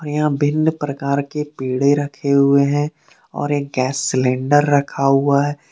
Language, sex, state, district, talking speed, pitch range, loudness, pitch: Hindi, male, Jharkhand, Deoghar, 155 wpm, 140-145 Hz, -18 LUFS, 140 Hz